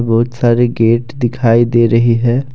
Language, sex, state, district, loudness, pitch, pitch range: Hindi, male, Jharkhand, Deoghar, -12 LUFS, 120 Hz, 115-120 Hz